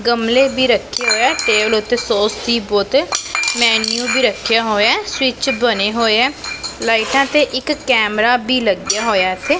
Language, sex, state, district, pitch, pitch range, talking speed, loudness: Punjabi, female, Punjab, Pathankot, 235 Hz, 220-260 Hz, 160 wpm, -15 LUFS